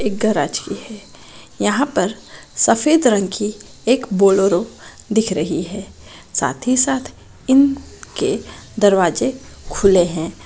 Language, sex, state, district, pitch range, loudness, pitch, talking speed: Hindi, female, Chhattisgarh, Raigarh, 195-255 Hz, -17 LUFS, 210 Hz, 110 wpm